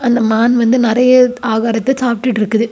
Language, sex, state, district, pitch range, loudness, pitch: Tamil, female, Tamil Nadu, Kanyakumari, 225-250 Hz, -13 LUFS, 235 Hz